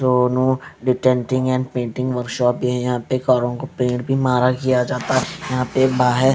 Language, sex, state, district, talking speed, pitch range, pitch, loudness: Hindi, male, Punjab, Fazilka, 200 wpm, 125-130 Hz, 125 Hz, -19 LUFS